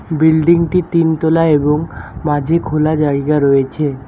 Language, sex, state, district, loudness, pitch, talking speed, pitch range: Bengali, male, West Bengal, Alipurduar, -14 LUFS, 155 Hz, 105 wpm, 145-160 Hz